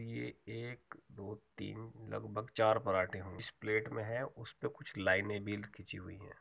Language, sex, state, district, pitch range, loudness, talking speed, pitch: Hindi, male, Uttar Pradesh, Muzaffarnagar, 100-115 Hz, -39 LUFS, 180 wpm, 110 Hz